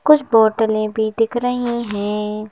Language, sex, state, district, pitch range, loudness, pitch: Hindi, female, Madhya Pradesh, Bhopal, 215-240 Hz, -18 LUFS, 220 Hz